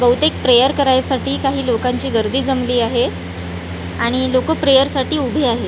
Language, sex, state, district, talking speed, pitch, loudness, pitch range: Marathi, female, Maharashtra, Gondia, 150 wpm, 255 Hz, -16 LUFS, 235-270 Hz